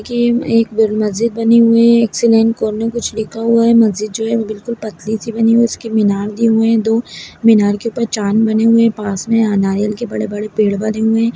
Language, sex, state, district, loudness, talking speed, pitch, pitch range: Hindi, male, Bihar, Gaya, -14 LUFS, 240 wpm, 225 Hz, 215-230 Hz